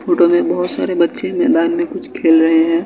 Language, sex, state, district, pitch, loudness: Hindi, male, Bihar, West Champaran, 315 Hz, -14 LUFS